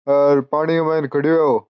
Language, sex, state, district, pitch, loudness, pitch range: Marwari, male, Rajasthan, Churu, 150 Hz, -17 LUFS, 140-160 Hz